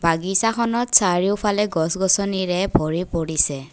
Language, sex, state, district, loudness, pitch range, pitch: Assamese, female, Assam, Kamrup Metropolitan, -19 LUFS, 165-205 Hz, 185 Hz